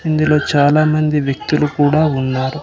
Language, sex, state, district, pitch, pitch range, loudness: Telugu, male, Andhra Pradesh, Manyam, 150 Hz, 145-155 Hz, -15 LUFS